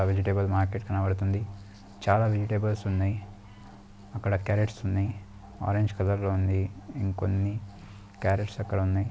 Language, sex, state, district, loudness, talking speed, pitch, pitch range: Telugu, male, Andhra Pradesh, Guntur, -29 LUFS, 120 wpm, 100 Hz, 95-105 Hz